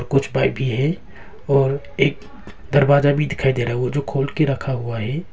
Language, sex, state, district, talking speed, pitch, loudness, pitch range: Hindi, male, Arunachal Pradesh, Longding, 215 wpm, 135 Hz, -20 LUFS, 130-145 Hz